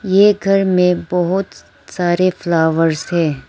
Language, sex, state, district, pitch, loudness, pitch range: Hindi, female, Arunachal Pradesh, Lower Dibang Valley, 180 Hz, -15 LUFS, 165-190 Hz